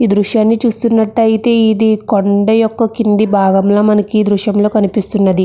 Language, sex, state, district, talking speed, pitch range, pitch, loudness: Telugu, female, Andhra Pradesh, Krishna, 145 wpm, 205-225 Hz, 215 Hz, -12 LUFS